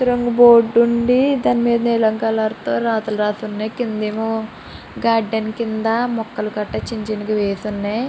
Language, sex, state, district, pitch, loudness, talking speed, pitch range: Telugu, female, Andhra Pradesh, Srikakulam, 225 Hz, -18 LUFS, 165 wpm, 215-235 Hz